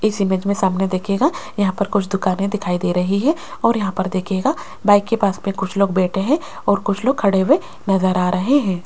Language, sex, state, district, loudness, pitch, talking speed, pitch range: Hindi, female, Rajasthan, Jaipur, -19 LUFS, 195 Hz, 230 wpm, 190-205 Hz